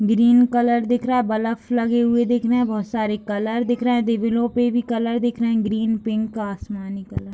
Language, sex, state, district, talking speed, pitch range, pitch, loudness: Hindi, female, Bihar, Bhagalpur, 235 wpm, 220-240 Hz, 230 Hz, -20 LUFS